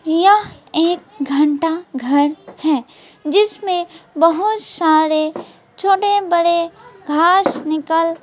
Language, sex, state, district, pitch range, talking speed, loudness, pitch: Hindi, female, West Bengal, Alipurduar, 310-370 Hz, 90 wpm, -16 LUFS, 330 Hz